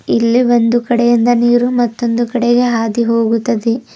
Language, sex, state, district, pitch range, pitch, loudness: Kannada, female, Karnataka, Bidar, 230-240 Hz, 240 Hz, -13 LUFS